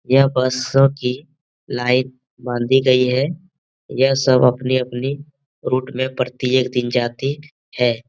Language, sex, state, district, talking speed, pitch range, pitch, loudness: Hindi, male, Bihar, Jahanabad, 140 wpm, 125-135 Hz, 130 Hz, -18 LUFS